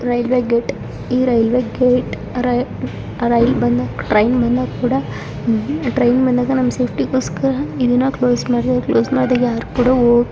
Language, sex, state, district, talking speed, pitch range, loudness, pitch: Kannada, female, Karnataka, Shimoga, 130 wpm, 240-255 Hz, -17 LUFS, 245 Hz